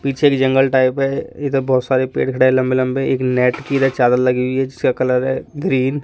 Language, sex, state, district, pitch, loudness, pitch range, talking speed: Hindi, male, Delhi, New Delhi, 130 Hz, -17 LUFS, 130-135 Hz, 260 wpm